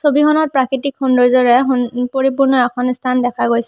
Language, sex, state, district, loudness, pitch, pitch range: Assamese, female, Assam, Hailakandi, -14 LUFS, 255 Hz, 245-270 Hz